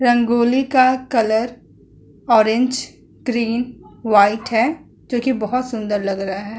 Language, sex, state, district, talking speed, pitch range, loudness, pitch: Hindi, female, Uttar Pradesh, Muzaffarnagar, 125 wpm, 220-255 Hz, -18 LUFS, 235 Hz